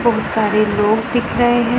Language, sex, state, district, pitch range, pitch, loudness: Hindi, female, Punjab, Pathankot, 215-240 Hz, 225 Hz, -16 LUFS